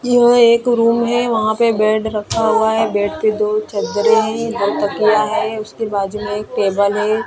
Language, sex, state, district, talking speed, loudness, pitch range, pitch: Hindi, female, Maharashtra, Mumbai Suburban, 200 wpm, -16 LUFS, 210-230 Hz, 215 Hz